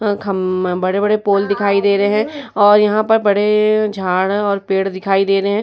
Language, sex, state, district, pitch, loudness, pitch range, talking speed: Hindi, female, Uttar Pradesh, Varanasi, 200 Hz, -15 LUFS, 195-210 Hz, 190 wpm